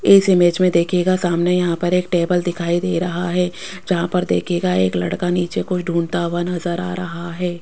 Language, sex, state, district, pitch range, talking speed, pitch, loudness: Hindi, female, Rajasthan, Jaipur, 170-180 Hz, 205 wpm, 175 Hz, -19 LUFS